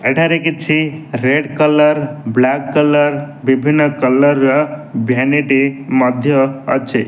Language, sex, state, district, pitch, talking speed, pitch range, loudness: Odia, male, Odisha, Nuapada, 145 Hz, 100 wpm, 135-150 Hz, -14 LUFS